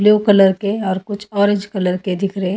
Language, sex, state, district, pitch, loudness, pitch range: Hindi, female, Haryana, Charkhi Dadri, 200 Hz, -17 LUFS, 190-205 Hz